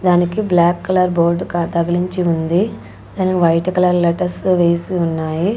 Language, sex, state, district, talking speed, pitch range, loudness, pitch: Telugu, female, Andhra Pradesh, Sri Satya Sai, 130 wpm, 170-185 Hz, -16 LUFS, 175 Hz